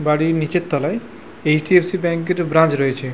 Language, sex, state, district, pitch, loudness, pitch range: Bengali, male, West Bengal, Purulia, 160 Hz, -18 LUFS, 150-175 Hz